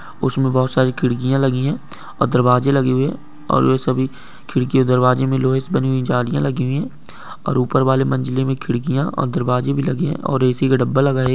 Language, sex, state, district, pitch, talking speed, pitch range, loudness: Hindi, male, Bihar, Supaul, 130 Hz, 225 wpm, 130-135 Hz, -18 LUFS